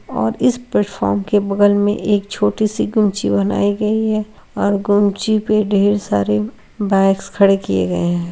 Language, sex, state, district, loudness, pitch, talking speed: Hindi, female, Uttar Pradesh, Etah, -17 LUFS, 200 Hz, 160 wpm